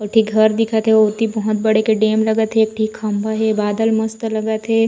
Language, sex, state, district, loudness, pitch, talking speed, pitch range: Chhattisgarhi, female, Chhattisgarh, Raigarh, -17 LUFS, 220 Hz, 245 wpm, 215-220 Hz